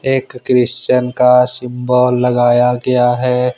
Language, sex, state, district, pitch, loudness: Hindi, male, Jharkhand, Ranchi, 125 Hz, -13 LUFS